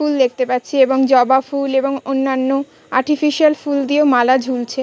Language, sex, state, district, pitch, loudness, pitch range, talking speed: Bengali, female, West Bengal, Kolkata, 270 Hz, -16 LUFS, 260-280 Hz, 160 wpm